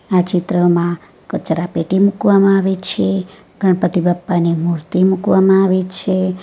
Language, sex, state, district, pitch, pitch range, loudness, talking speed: Gujarati, female, Gujarat, Valsad, 185 Hz, 175-190 Hz, -15 LUFS, 120 wpm